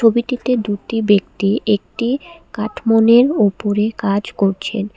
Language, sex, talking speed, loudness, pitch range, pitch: Bengali, female, 95 wpm, -17 LUFS, 205-235 Hz, 220 Hz